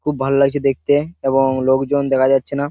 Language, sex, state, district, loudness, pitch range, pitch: Bengali, male, West Bengal, Purulia, -17 LUFS, 135-145 Hz, 135 Hz